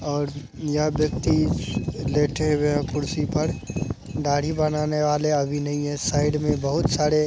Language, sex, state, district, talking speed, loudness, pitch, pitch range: Hindi, male, Bihar, Araria, 155 wpm, -24 LUFS, 150 Hz, 145-150 Hz